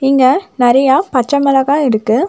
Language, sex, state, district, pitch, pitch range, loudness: Tamil, female, Tamil Nadu, Nilgiris, 270 Hz, 250-285 Hz, -12 LUFS